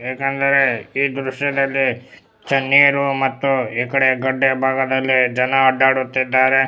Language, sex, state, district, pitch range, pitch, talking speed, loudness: Kannada, male, Karnataka, Bellary, 130-135 Hz, 135 Hz, 100 wpm, -17 LUFS